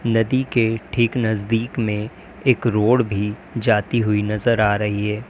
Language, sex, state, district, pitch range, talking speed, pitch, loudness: Hindi, male, Uttar Pradesh, Lalitpur, 105-120 Hz, 160 wpm, 115 Hz, -20 LUFS